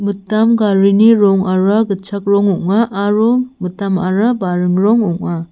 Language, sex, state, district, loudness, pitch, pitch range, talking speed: Garo, female, Meghalaya, South Garo Hills, -14 LUFS, 200 Hz, 185-215 Hz, 120 wpm